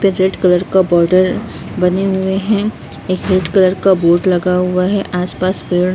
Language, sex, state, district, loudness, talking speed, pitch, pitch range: Hindi, female, Bihar, Saharsa, -14 LUFS, 180 wpm, 185 Hz, 180-190 Hz